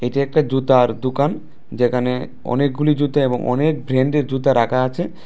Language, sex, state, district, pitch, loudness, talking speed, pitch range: Bengali, male, Tripura, West Tripura, 135 Hz, -18 LUFS, 150 wpm, 125-145 Hz